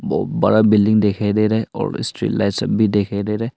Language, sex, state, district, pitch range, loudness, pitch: Hindi, male, Arunachal Pradesh, Longding, 105-110 Hz, -18 LUFS, 105 Hz